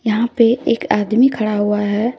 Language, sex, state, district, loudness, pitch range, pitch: Hindi, female, Jharkhand, Deoghar, -16 LUFS, 210-240 Hz, 220 Hz